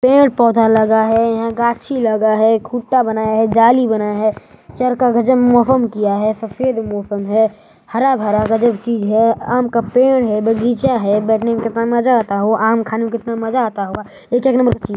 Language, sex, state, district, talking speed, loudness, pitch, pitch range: Hindi, male, Chhattisgarh, Balrampur, 215 wpm, -15 LUFS, 230 Hz, 220-245 Hz